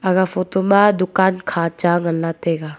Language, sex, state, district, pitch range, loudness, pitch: Wancho, female, Arunachal Pradesh, Longding, 165-190 Hz, -17 LUFS, 185 Hz